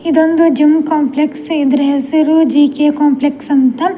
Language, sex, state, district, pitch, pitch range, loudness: Kannada, female, Karnataka, Dakshina Kannada, 295 Hz, 285-315 Hz, -12 LUFS